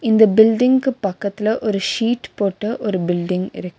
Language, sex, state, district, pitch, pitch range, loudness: Tamil, female, Tamil Nadu, Nilgiris, 210 Hz, 195-230 Hz, -18 LUFS